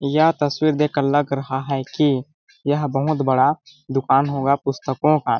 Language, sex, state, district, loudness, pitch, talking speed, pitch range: Hindi, male, Chhattisgarh, Balrampur, -20 LUFS, 140 Hz, 165 wpm, 135-150 Hz